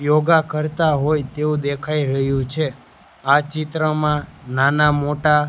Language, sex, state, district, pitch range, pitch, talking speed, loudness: Gujarati, male, Gujarat, Gandhinagar, 140-155 Hz, 150 Hz, 120 wpm, -19 LUFS